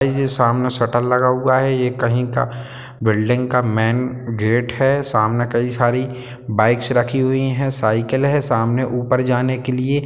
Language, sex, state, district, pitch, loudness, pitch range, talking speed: Hindi, male, Bihar, Sitamarhi, 125 Hz, -18 LUFS, 120-130 Hz, 180 wpm